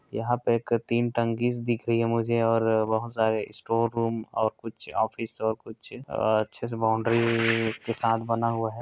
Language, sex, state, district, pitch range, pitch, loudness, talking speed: Hindi, male, Chhattisgarh, Korba, 110-115 Hz, 115 Hz, -26 LUFS, 185 wpm